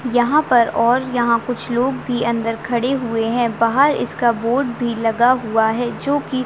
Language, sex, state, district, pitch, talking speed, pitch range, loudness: Hindi, female, Chhattisgarh, Bilaspur, 240 Hz, 195 wpm, 230-255 Hz, -18 LUFS